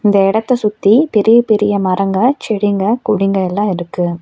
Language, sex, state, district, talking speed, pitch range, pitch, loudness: Tamil, female, Tamil Nadu, Nilgiris, 140 wpm, 195-220 Hz, 205 Hz, -14 LUFS